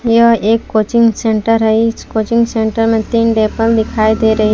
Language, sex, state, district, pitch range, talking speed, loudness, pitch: Hindi, female, Jharkhand, Palamu, 220-230 Hz, 170 wpm, -13 LUFS, 225 Hz